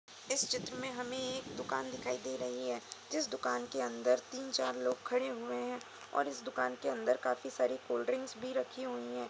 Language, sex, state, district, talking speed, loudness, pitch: Hindi, female, Uttar Pradesh, Budaun, 205 wpm, -37 LUFS, 130 Hz